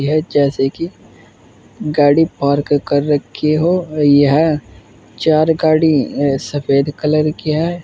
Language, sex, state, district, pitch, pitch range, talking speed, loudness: Hindi, male, Uttar Pradesh, Saharanpur, 145 Hz, 140-155 Hz, 105 wpm, -15 LUFS